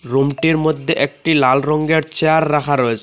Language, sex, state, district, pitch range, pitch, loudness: Bengali, male, Assam, Hailakandi, 140-160 Hz, 150 Hz, -16 LUFS